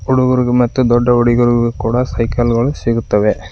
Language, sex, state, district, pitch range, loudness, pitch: Kannada, female, Karnataka, Koppal, 115-125 Hz, -14 LUFS, 120 Hz